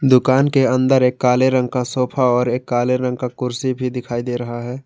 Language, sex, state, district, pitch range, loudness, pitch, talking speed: Hindi, male, Jharkhand, Garhwa, 125-130 Hz, -18 LUFS, 125 Hz, 235 wpm